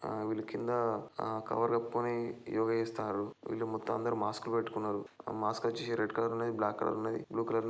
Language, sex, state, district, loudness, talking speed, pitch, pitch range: Telugu, male, Andhra Pradesh, Chittoor, -35 LUFS, 185 wpm, 115 Hz, 110-115 Hz